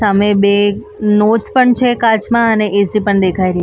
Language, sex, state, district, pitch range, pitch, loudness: Gujarati, female, Maharashtra, Mumbai Suburban, 200-225 Hz, 210 Hz, -12 LUFS